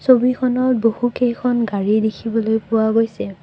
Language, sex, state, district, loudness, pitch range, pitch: Assamese, female, Assam, Kamrup Metropolitan, -18 LUFS, 220-245 Hz, 230 Hz